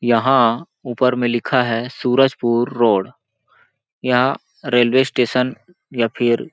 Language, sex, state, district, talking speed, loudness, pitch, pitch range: Hindi, male, Chhattisgarh, Balrampur, 120 wpm, -18 LUFS, 120 Hz, 120-130 Hz